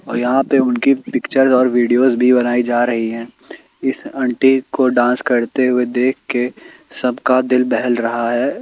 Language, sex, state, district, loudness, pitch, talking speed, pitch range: Hindi, male, Bihar, Kaimur, -16 LUFS, 125 Hz, 165 wpm, 120-130 Hz